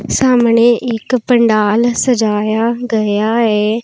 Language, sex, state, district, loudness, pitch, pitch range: Hindi, female, Punjab, Pathankot, -13 LUFS, 230 Hz, 215-240 Hz